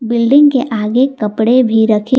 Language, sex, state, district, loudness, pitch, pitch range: Hindi, female, Jharkhand, Palamu, -12 LUFS, 235 Hz, 220-260 Hz